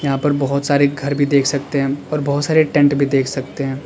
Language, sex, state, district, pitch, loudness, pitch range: Hindi, male, Uttar Pradesh, Lalitpur, 140 Hz, -17 LUFS, 140-145 Hz